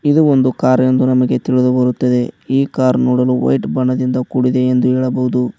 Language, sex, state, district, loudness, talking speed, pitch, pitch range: Kannada, male, Karnataka, Koppal, -14 LUFS, 160 wpm, 125 Hz, 125-130 Hz